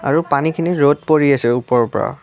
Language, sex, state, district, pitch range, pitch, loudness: Assamese, male, Assam, Kamrup Metropolitan, 125-160 Hz, 145 Hz, -16 LUFS